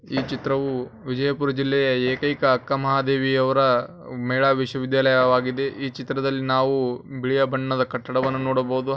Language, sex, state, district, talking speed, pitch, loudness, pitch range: Kannada, male, Karnataka, Bijapur, 115 wpm, 135 Hz, -22 LUFS, 130-135 Hz